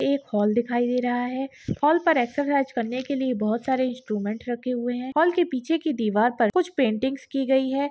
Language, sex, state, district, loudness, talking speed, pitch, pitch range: Hindi, female, Bihar, Saharsa, -24 LUFS, 220 wpm, 255 Hz, 240-280 Hz